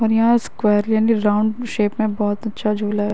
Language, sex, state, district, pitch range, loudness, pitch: Hindi, female, Uttar Pradesh, Varanasi, 210-225 Hz, -19 LUFS, 215 Hz